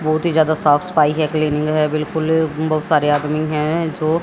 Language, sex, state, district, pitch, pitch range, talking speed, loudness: Hindi, female, Haryana, Jhajjar, 155 Hz, 150-160 Hz, 200 wpm, -17 LUFS